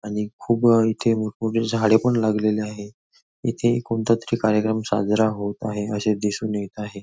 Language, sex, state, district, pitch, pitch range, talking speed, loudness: Marathi, male, Maharashtra, Nagpur, 110 Hz, 105-115 Hz, 170 wpm, -22 LUFS